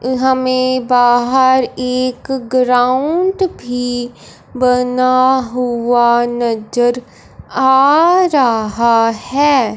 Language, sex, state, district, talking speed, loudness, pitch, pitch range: Hindi, male, Punjab, Fazilka, 70 wpm, -13 LUFS, 250 Hz, 240-260 Hz